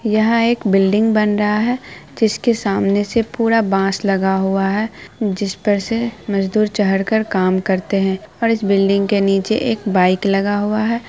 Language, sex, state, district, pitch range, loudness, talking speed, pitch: Hindi, female, Bihar, Araria, 195-220 Hz, -17 LUFS, 175 wpm, 205 Hz